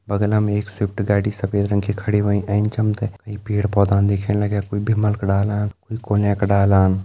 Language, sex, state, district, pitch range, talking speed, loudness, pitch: Hindi, male, Uttarakhand, Uttarkashi, 100-105 Hz, 220 wpm, -20 LUFS, 105 Hz